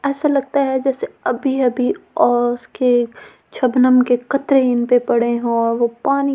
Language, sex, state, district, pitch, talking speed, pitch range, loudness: Hindi, female, Delhi, New Delhi, 250 Hz, 170 wpm, 240-275 Hz, -17 LUFS